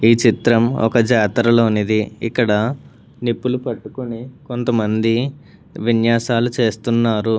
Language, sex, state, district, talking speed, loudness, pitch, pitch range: Telugu, male, Telangana, Hyderabad, 90 wpm, -18 LUFS, 115 Hz, 115-120 Hz